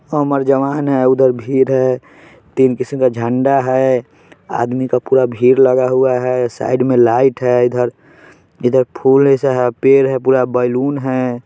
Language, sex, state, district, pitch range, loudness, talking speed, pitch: Hindi, male, Bihar, Vaishali, 125-135 Hz, -14 LUFS, 170 wpm, 130 Hz